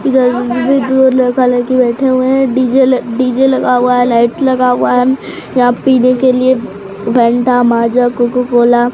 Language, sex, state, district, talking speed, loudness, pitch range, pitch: Hindi, female, Bihar, Katihar, 170 wpm, -11 LUFS, 245-260 Hz, 250 Hz